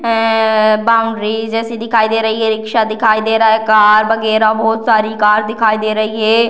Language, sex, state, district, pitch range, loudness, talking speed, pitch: Hindi, female, Bihar, Sitamarhi, 215-225 Hz, -13 LUFS, 195 wpm, 220 Hz